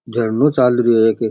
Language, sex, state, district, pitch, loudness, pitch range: Rajasthani, male, Rajasthan, Churu, 120 Hz, -15 LUFS, 115-125 Hz